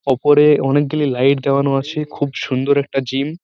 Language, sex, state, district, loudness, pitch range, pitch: Bengali, male, West Bengal, Purulia, -16 LUFS, 135-145 Hz, 140 Hz